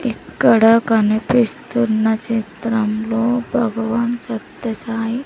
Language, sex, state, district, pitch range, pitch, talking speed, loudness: Telugu, female, Andhra Pradesh, Sri Satya Sai, 220-235 Hz, 225 Hz, 55 wpm, -18 LUFS